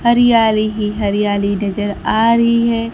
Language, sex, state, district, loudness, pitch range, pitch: Hindi, female, Bihar, Kaimur, -15 LUFS, 205-235 Hz, 215 Hz